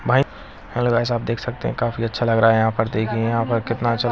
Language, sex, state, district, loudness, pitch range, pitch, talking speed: Hindi, male, Uttarakhand, Tehri Garhwal, -21 LUFS, 115-120 Hz, 115 Hz, 275 wpm